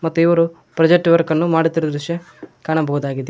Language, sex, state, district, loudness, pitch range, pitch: Kannada, male, Karnataka, Koppal, -17 LUFS, 155-170 Hz, 165 Hz